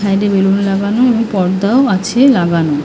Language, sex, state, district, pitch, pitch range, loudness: Bengali, female, West Bengal, North 24 Parganas, 200 Hz, 190-230 Hz, -12 LUFS